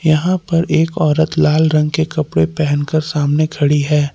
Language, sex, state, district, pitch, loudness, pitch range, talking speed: Hindi, male, Jharkhand, Palamu, 155 Hz, -15 LUFS, 150-160 Hz, 175 wpm